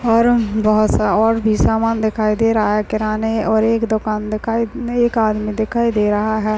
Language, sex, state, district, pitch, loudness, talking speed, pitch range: Hindi, male, Maharashtra, Dhule, 220 Hz, -17 LUFS, 190 wpm, 215-225 Hz